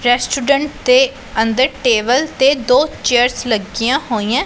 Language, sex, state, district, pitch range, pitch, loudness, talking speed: Punjabi, female, Punjab, Pathankot, 240-270 Hz, 250 Hz, -15 LUFS, 120 wpm